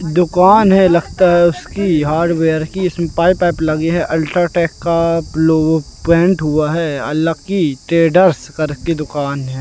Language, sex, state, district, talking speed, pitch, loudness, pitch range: Hindi, male, Madhya Pradesh, Katni, 145 wpm, 165 Hz, -14 LUFS, 155-175 Hz